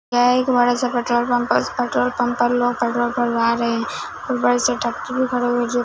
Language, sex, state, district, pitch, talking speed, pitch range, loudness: Hindi, female, Punjab, Fazilka, 245 Hz, 245 wpm, 240-245 Hz, -19 LUFS